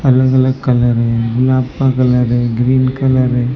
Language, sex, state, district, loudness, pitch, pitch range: Hindi, male, Maharashtra, Mumbai Suburban, -13 LUFS, 130 Hz, 120-130 Hz